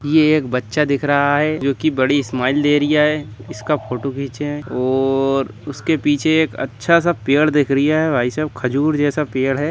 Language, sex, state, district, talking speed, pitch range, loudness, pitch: Hindi, male, Bihar, Begusarai, 245 wpm, 135-150 Hz, -17 LUFS, 145 Hz